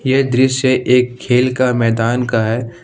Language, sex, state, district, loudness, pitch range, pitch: Hindi, male, Jharkhand, Ranchi, -15 LUFS, 115-130 Hz, 125 Hz